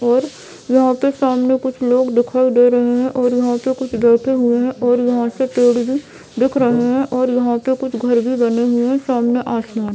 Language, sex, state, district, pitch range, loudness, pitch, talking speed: Hindi, female, Jharkhand, Jamtara, 240-260 Hz, -16 LUFS, 245 Hz, 225 wpm